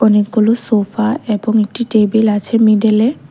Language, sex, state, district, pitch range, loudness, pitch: Bengali, female, Tripura, West Tripura, 215-230 Hz, -14 LUFS, 220 Hz